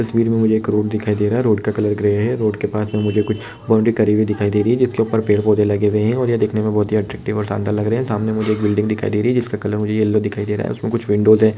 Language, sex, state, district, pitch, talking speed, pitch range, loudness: Hindi, male, Bihar, Jamui, 105 Hz, 325 wpm, 105-110 Hz, -18 LUFS